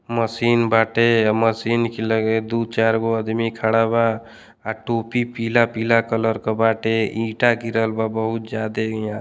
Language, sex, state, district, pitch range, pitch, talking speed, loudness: Bhojpuri, male, Uttar Pradesh, Deoria, 110-115 Hz, 115 Hz, 150 wpm, -20 LUFS